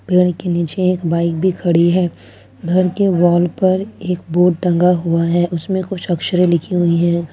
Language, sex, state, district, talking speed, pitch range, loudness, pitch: Hindi, female, Jharkhand, Ranchi, 190 wpm, 170-180 Hz, -16 LUFS, 175 Hz